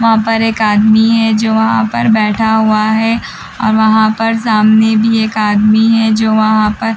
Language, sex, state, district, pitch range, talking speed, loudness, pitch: Hindi, female, Bihar, Patna, 215-225 Hz, 190 wpm, -11 LUFS, 220 Hz